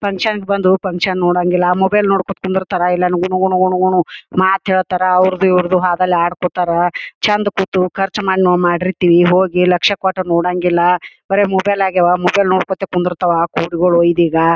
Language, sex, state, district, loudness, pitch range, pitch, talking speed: Kannada, female, Karnataka, Gulbarga, -14 LUFS, 180-190 Hz, 185 Hz, 155 wpm